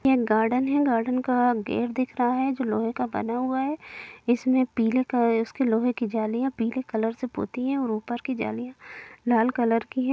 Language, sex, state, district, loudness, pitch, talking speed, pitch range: Hindi, female, Bihar, Gopalganj, -25 LUFS, 245 Hz, 205 wpm, 230-255 Hz